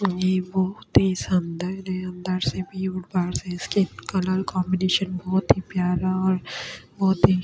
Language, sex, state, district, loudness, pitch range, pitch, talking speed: Hindi, female, Delhi, New Delhi, -24 LUFS, 180-190 Hz, 185 Hz, 170 wpm